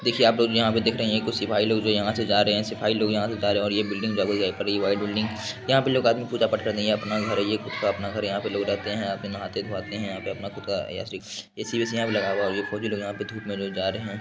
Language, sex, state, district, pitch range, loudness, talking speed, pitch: Hindi, male, Bihar, Supaul, 100-110 Hz, -25 LUFS, 340 wpm, 105 Hz